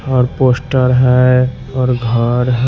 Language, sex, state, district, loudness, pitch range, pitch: Hindi, male, Bihar, West Champaran, -13 LUFS, 125-130 Hz, 125 Hz